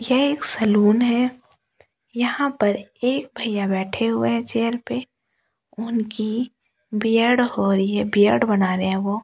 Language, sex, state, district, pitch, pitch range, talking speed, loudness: Hindi, female, Delhi, New Delhi, 225 Hz, 205-245 Hz, 155 wpm, -19 LUFS